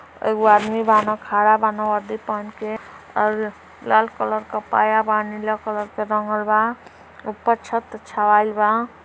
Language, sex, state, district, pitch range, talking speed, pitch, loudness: Hindi, female, Uttar Pradesh, Gorakhpur, 210-220 Hz, 150 wpm, 215 Hz, -20 LUFS